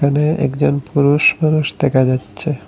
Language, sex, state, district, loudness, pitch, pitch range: Bengali, male, Assam, Hailakandi, -15 LUFS, 145 Hz, 140-150 Hz